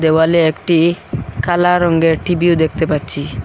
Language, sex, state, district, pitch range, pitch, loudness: Bengali, female, Assam, Hailakandi, 150-170 Hz, 160 Hz, -14 LUFS